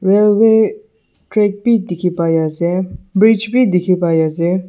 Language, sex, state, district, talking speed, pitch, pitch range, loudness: Nagamese, male, Nagaland, Dimapur, 140 wpm, 190 Hz, 175-220 Hz, -14 LUFS